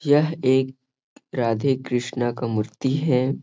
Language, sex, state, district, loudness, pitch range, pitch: Hindi, male, Bihar, Gaya, -23 LUFS, 120-140 Hz, 130 Hz